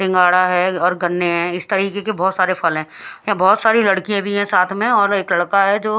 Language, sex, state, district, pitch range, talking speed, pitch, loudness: Hindi, female, Haryana, Charkhi Dadri, 180-200 Hz, 250 wpm, 190 Hz, -16 LUFS